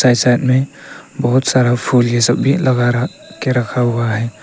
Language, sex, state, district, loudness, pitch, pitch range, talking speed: Hindi, male, Arunachal Pradesh, Papum Pare, -15 LUFS, 125 Hz, 120-130 Hz, 190 wpm